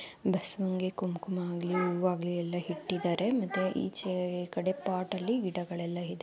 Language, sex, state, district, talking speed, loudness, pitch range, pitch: Kannada, female, Karnataka, Dharwad, 125 wpm, -33 LUFS, 175-190 Hz, 180 Hz